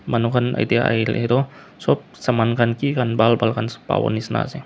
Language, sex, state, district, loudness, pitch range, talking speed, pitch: Nagamese, male, Nagaland, Dimapur, -20 LUFS, 115-125 Hz, 220 wpm, 115 Hz